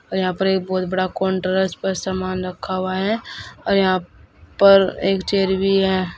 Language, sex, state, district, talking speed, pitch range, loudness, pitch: Hindi, female, Uttar Pradesh, Saharanpur, 205 wpm, 185-190 Hz, -19 LUFS, 190 Hz